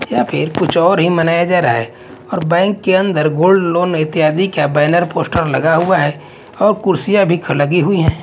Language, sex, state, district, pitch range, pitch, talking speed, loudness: Hindi, male, Punjab, Fazilka, 155-185 Hz, 170 Hz, 205 wpm, -14 LUFS